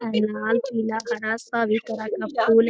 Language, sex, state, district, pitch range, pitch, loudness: Hindi, female, Bihar, Jamui, 220-230 Hz, 225 Hz, -24 LUFS